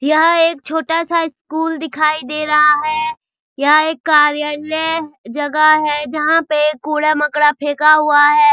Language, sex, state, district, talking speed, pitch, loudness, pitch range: Hindi, female, Bihar, Saharsa, 135 wpm, 305 Hz, -14 LUFS, 295-320 Hz